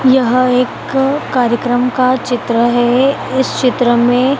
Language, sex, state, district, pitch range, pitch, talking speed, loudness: Hindi, female, Madhya Pradesh, Dhar, 245-260 Hz, 250 Hz, 125 wpm, -13 LUFS